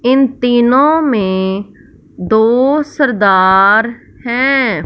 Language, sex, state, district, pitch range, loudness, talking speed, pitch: Hindi, female, Punjab, Fazilka, 200-270 Hz, -11 LUFS, 75 wpm, 240 Hz